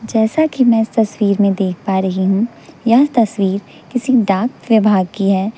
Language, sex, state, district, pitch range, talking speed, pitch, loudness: Hindi, female, Chhattisgarh, Raipur, 195-235 Hz, 180 wpm, 215 Hz, -15 LUFS